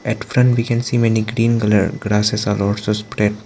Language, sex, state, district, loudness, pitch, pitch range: English, male, Arunachal Pradesh, Lower Dibang Valley, -17 LUFS, 110 Hz, 105-115 Hz